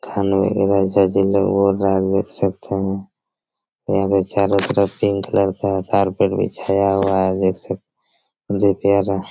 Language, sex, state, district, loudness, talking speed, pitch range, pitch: Hindi, male, Chhattisgarh, Raigarh, -18 LUFS, 150 wpm, 95-100 Hz, 100 Hz